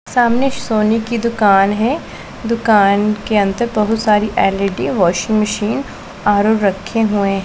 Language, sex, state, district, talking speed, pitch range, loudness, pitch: Hindi, female, Punjab, Pathankot, 135 wpm, 200-225 Hz, -15 LUFS, 210 Hz